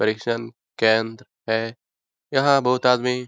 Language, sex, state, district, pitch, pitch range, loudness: Hindi, male, Bihar, Jahanabad, 115 Hz, 115-125 Hz, -21 LUFS